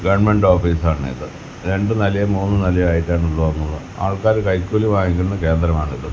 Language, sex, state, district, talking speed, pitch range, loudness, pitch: Malayalam, male, Kerala, Kasaragod, 110 wpm, 80-100 Hz, -18 LUFS, 90 Hz